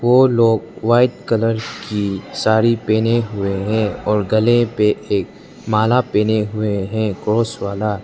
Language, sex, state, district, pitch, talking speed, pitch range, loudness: Hindi, male, Arunachal Pradesh, Lower Dibang Valley, 110 Hz, 140 wpm, 105-115 Hz, -17 LUFS